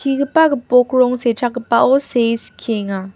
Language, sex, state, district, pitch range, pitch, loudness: Garo, female, Meghalaya, West Garo Hills, 230-270 Hz, 245 Hz, -16 LUFS